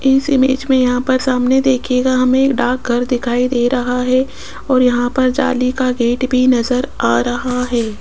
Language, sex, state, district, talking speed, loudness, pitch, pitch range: Hindi, female, Rajasthan, Jaipur, 180 wpm, -15 LUFS, 255 Hz, 245-260 Hz